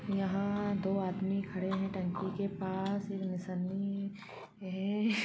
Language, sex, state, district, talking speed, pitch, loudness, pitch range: Hindi, female, Uttar Pradesh, Deoria, 135 wpm, 195 Hz, -35 LUFS, 190-200 Hz